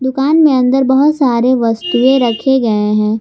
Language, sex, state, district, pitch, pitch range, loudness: Hindi, female, Jharkhand, Garhwa, 255 Hz, 230-265 Hz, -12 LUFS